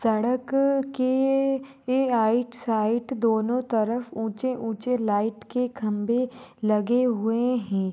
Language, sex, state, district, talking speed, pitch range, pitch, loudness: Hindi, female, Jharkhand, Sahebganj, 115 wpm, 220-255 Hz, 240 Hz, -25 LUFS